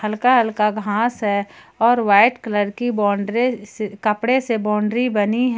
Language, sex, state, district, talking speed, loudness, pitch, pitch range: Hindi, female, Jharkhand, Ranchi, 150 wpm, -19 LUFS, 215 Hz, 210-240 Hz